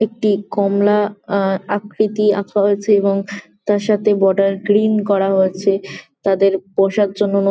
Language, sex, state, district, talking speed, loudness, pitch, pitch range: Bengali, female, West Bengal, Jalpaiguri, 135 wpm, -16 LUFS, 200 Hz, 195-210 Hz